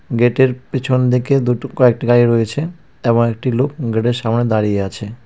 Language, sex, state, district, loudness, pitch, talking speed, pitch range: Bengali, male, West Bengal, Cooch Behar, -16 LUFS, 120 Hz, 160 wpm, 115-130 Hz